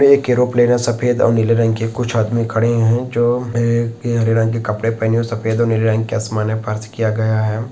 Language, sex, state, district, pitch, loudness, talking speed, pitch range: Hindi, male, Chhattisgarh, Sukma, 115 Hz, -17 LUFS, 250 wpm, 110-120 Hz